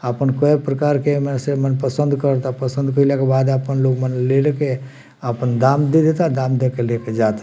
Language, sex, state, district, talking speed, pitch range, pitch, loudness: Bhojpuri, male, Bihar, Muzaffarpur, 220 wpm, 130-140 Hz, 135 Hz, -18 LUFS